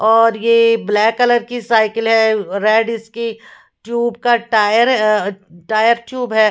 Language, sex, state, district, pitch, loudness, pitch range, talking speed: Hindi, female, Punjab, Fazilka, 225 Hz, -15 LUFS, 215-235 Hz, 175 wpm